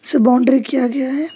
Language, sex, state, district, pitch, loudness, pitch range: Hindi, male, West Bengal, Alipurduar, 265 Hz, -15 LUFS, 250-295 Hz